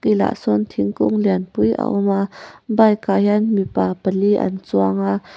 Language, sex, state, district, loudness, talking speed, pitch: Mizo, female, Mizoram, Aizawl, -18 LUFS, 155 wpm, 195 Hz